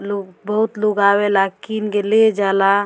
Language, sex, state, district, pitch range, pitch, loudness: Bhojpuri, female, Bihar, Muzaffarpur, 195-215 Hz, 205 Hz, -17 LUFS